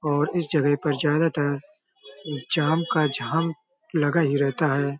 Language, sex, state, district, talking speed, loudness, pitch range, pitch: Hindi, male, Uttar Pradesh, Hamirpur, 145 wpm, -24 LUFS, 145-165 Hz, 150 Hz